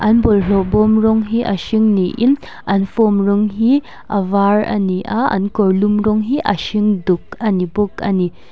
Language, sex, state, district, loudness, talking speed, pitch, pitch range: Mizo, female, Mizoram, Aizawl, -16 LUFS, 205 wpm, 210 Hz, 195-220 Hz